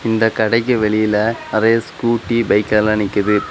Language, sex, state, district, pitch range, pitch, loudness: Tamil, male, Tamil Nadu, Kanyakumari, 105-115 Hz, 110 Hz, -16 LUFS